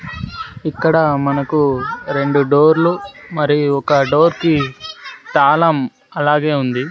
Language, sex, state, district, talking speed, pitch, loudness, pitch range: Telugu, male, Andhra Pradesh, Sri Satya Sai, 95 wpm, 145 Hz, -15 LUFS, 140-160 Hz